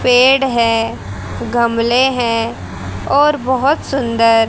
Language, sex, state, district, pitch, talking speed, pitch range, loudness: Hindi, female, Haryana, Jhajjar, 235 Hz, 95 wpm, 230-265 Hz, -14 LUFS